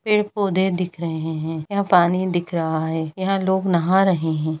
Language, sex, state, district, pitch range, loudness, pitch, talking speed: Hindi, female, Bihar, Gaya, 160-190 Hz, -21 LUFS, 175 Hz, 180 wpm